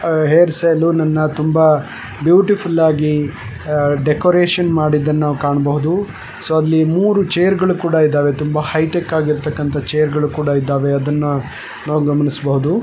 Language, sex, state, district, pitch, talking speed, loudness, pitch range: Kannada, male, Karnataka, Chamarajanagar, 155 Hz, 110 wpm, -15 LUFS, 145-165 Hz